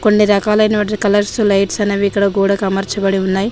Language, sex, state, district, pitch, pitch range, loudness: Telugu, female, Telangana, Mahabubabad, 200 Hz, 195-210 Hz, -15 LUFS